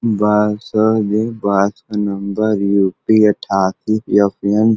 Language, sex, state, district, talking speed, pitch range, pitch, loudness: Bhojpuri, male, Uttar Pradesh, Varanasi, 125 wpm, 100-110 Hz, 105 Hz, -16 LUFS